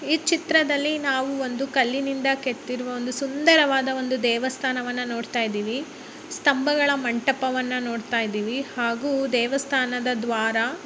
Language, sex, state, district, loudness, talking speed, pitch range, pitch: Kannada, male, Karnataka, Bellary, -23 LUFS, 110 wpm, 245-275 Hz, 260 Hz